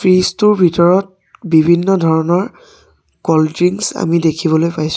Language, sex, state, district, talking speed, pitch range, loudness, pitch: Assamese, male, Assam, Sonitpur, 120 wpm, 160-195 Hz, -13 LUFS, 175 Hz